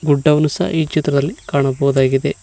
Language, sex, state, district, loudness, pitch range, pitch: Kannada, male, Karnataka, Koppal, -16 LUFS, 140-155 Hz, 145 Hz